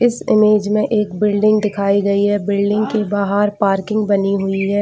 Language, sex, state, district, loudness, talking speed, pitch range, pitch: Hindi, female, Chhattisgarh, Bilaspur, -16 LUFS, 185 wpm, 200-210 Hz, 205 Hz